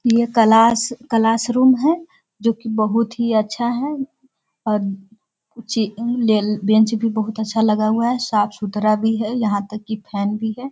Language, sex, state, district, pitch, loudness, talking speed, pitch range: Hindi, female, Bihar, Sitamarhi, 225 Hz, -19 LUFS, 175 wpm, 215-235 Hz